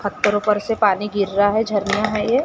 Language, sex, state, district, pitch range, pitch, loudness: Hindi, female, Maharashtra, Gondia, 205-210 Hz, 205 Hz, -19 LUFS